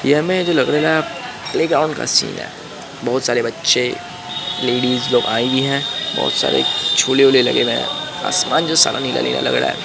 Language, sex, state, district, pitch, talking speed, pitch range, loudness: Hindi, male, Bihar, Araria, 135 Hz, 185 wpm, 125-160 Hz, -16 LUFS